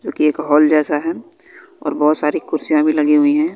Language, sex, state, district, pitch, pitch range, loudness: Hindi, female, Bihar, West Champaran, 150 Hz, 150-165 Hz, -16 LUFS